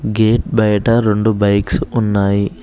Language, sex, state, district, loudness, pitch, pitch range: Telugu, male, Telangana, Hyderabad, -15 LUFS, 105 Hz, 100-110 Hz